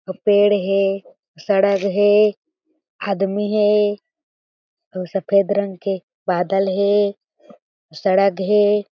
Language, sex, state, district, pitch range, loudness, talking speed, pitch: Chhattisgarhi, female, Chhattisgarh, Jashpur, 195-210 Hz, -18 LUFS, 95 wpm, 200 Hz